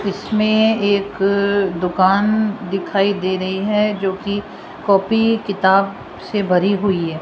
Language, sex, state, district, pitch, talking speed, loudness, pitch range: Hindi, female, Rajasthan, Jaipur, 200 Hz, 125 wpm, -17 LUFS, 190-210 Hz